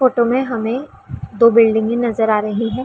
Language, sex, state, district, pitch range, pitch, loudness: Hindi, female, Chhattisgarh, Raigarh, 225-245 Hz, 230 Hz, -16 LUFS